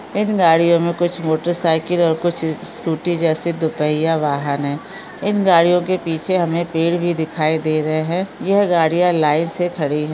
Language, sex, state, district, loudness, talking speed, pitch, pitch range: Hindi, female, Maharashtra, Solapur, -17 LUFS, 190 wpm, 165 Hz, 155-175 Hz